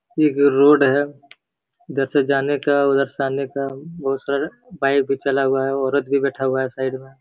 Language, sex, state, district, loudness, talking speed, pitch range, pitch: Hindi, male, Bihar, Supaul, -20 LUFS, 225 wpm, 135-145 Hz, 140 Hz